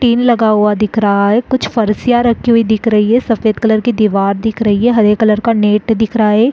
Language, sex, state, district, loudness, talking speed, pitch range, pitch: Hindi, female, Chhattisgarh, Bastar, -12 LUFS, 265 wpm, 210-235 Hz, 220 Hz